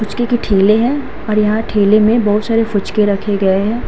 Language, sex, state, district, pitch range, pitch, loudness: Hindi, female, Uttar Pradesh, Hamirpur, 205-225 Hz, 215 Hz, -14 LUFS